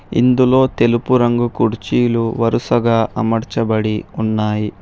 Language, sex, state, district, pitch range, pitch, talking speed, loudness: Telugu, male, Telangana, Hyderabad, 110-120 Hz, 115 Hz, 85 wpm, -16 LUFS